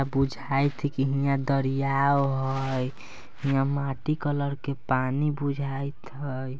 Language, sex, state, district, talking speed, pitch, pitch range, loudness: Bajjika, male, Bihar, Vaishali, 120 wpm, 135 Hz, 135-140 Hz, -27 LUFS